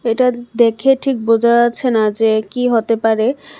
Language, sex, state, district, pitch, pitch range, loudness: Bengali, female, Tripura, West Tripura, 235 Hz, 225-250 Hz, -15 LUFS